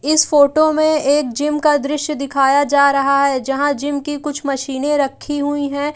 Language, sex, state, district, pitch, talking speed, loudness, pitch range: Hindi, female, Uttar Pradesh, Jalaun, 285 Hz, 190 wpm, -16 LUFS, 280-295 Hz